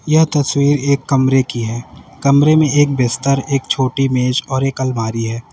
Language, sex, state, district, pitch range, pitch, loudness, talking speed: Hindi, male, Uttar Pradesh, Lalitpur, 125-145 Hz, 135 Hz, -15 LUFS, 185 wpm